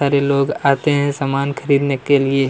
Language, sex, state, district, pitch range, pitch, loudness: Hindi, male, Chhattisgarh, Kabirdham, 135-140 Hz, 140 Hz, -17 LUFS